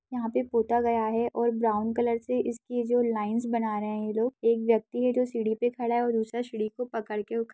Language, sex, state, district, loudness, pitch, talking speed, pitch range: Hindi, female, Bihar, Saharsa, -28 LUFS, 230 Hz, 255 wpm, 220-240 Hz